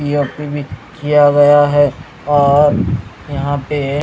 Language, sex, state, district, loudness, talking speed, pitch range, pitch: Hindi, male, Haryana, Rohtak, -13 LUFS, 120 wpm, 140-145 Hz, 145 Hz